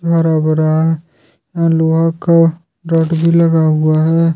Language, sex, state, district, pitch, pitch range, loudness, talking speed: Hindi, male, Jharkhand, Deoghar, 165 Hz, 155-165 Hz, -13 LUFS, 140 wpm